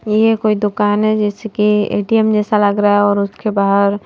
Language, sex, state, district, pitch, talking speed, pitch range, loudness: Hindi, female, Madhya Pradesh, Bhopal, 210 Hz, 175 wpm, 205-215 Hz, -14 LUFS